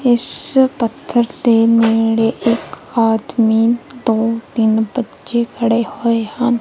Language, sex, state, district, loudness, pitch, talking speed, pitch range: Punjabi, female, Punjab, Kapurthala, -15 LUFS, 230 Hz, 110 wpm, 225-240 Hz